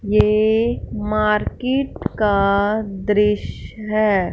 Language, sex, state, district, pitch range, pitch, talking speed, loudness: Hindi, female, Punjab, Fazilka, 210-215 Hz, 210 Hz, 70 wpm, -19 LUFS